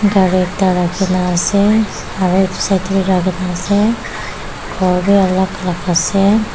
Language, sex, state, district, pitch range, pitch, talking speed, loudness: Nagamese, female, Nagaland, Dimapur, 180-200 Hz, 185 Hz, 130 wpm, -15 LUFS